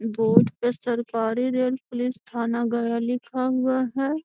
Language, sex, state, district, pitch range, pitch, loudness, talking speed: Magahi, female, Bihar, Gaya, 235-255 Hz, 245 Hz, -24 LUFS, 140 wpm